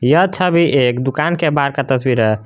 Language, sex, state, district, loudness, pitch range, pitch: Hindi, male, Jharkhand, Garhwa, -15 LUFS, 125-165 Hz, 140 Hz